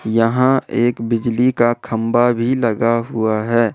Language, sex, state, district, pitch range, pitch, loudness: Hindi, male, Jharkhand, Ranchi, 115-120 Hz, 115 Hz, -17 LUFS